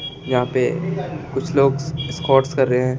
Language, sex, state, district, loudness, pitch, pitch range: Hindi, male, Delhi, New Delhi, -20 LUFS, 140 Hz, 130-150 Hz